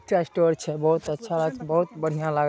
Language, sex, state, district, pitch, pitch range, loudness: Maithili, male, Bihar, Saharsa, 160 Hz, 155-165 Hz, -25 LUFS